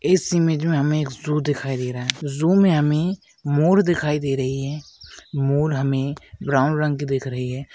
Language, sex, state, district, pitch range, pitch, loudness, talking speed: Hindi, male, Rajasthan, Churu, 135-155 Hz, 145 Hz, -21 LUFS, 200 wpm